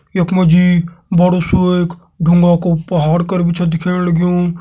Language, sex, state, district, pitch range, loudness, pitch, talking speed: Garhwali, male, Uttarakhand, Tehri Garhwal, 170-180 Hz, -13 LUFS, 175 Hz, 170 wpm